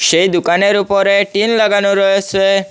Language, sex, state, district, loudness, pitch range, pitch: Bengali, male, Assam, Hailakandi, -12 LUFS, 195-200 Hz, 195 Hz